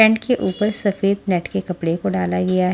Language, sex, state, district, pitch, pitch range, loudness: Hindi, female, Maharashtra, Washim, 185 Hz, 175-205 Hz, -20 LUFS